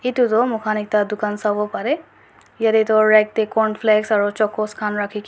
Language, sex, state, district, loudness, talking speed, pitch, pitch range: Nagamese, female, Nagaland, Dimapur, -19 LUFS, 195 wpm, 215 Hz, 210-220 Hz